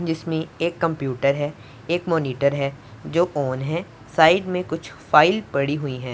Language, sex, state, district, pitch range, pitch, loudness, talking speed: Hindi, male, Punjab, Pathankot, 135-165 Hz, 145 Hz, -22 LUFS, 165 wpm